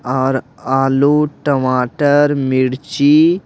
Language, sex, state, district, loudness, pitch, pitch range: Hindi, male, Bihar, Patna, -15 LUFS, 135 Hz, 130-145 Hz